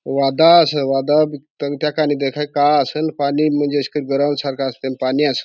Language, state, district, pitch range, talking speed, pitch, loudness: Bhili, Maharashtra, Dhule, 135-150 Hz, 210 wpm, 145 Hz, -17 LUFS